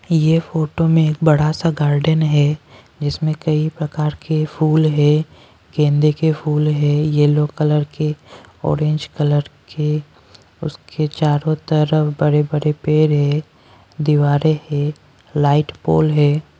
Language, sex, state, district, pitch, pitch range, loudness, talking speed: Hindi, female, Maharashtra, Washim, 150 Hz, 150-155 Hz, -17 LUFS, 130 wpm